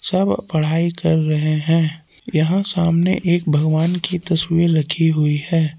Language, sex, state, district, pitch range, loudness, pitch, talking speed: Hindi, male, Jharkhand, Palamu, 155-175 Hz, -18 LUFS, 165 Hz, 145 wpm